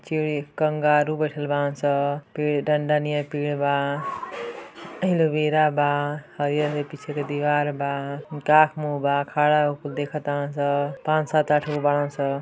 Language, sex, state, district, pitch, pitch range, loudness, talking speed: Bhojpuri, female, Uttar Pradesh, Ghazipur, 145 Hz, 145-150 Hz, -23 LUFS, 145 wpm